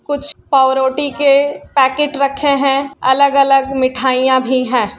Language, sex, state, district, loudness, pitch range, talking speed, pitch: Hindi, female, Bihar, Kishanganj, -13 LUFS, 260-280 Hz, 120 wpm, 275 Hz